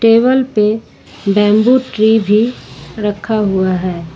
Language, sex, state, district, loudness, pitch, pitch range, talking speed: Hindi, female, Jharkhand, Ranchi, -13 LUFS, 215 Hz, 200-225 Hz, 115 wpm